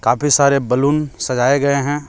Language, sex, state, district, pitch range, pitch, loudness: Hindi, male, Jharkhand, Deoghar, 135-145 Hz, 140 Hz, -15 LUFS